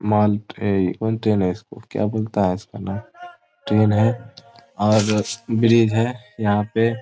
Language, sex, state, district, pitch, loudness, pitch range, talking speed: Hindi, male, Bihar, Gopalganj, 110 Hz, -20 LUFS, 105-115 Hz, 145 wpm